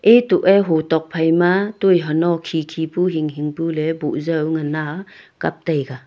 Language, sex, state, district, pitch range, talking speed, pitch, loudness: Wancho, female, Arunachal Pradesh, Longding, 155-180 Hz, 180 wpm, 160 Hz, -18 LUFS